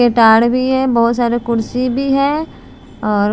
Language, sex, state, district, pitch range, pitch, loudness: Hindi, female, Bihar, Patna, 230-260 Hz, 240 Hz, -14 LUFS